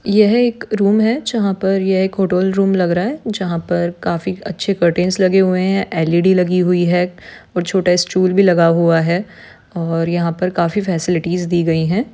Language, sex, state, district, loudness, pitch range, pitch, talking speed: Hindi, female, Rajasthan, Nagaur, -16 LUFS, 175-195 Hz, 185 Hz, 190 wpm